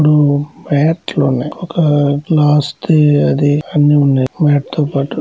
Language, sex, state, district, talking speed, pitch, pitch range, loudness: Telugu, male, Andhra Pradesh, Chittoor, 70 wpm, 145 Hz, 145-150 Hz, -13 LUFS